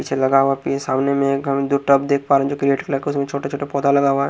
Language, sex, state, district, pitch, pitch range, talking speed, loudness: Hindi, male, Haryana, Jhajjar, 140 Hz, 135-140 Hz, 280 wpm, -18 LUFS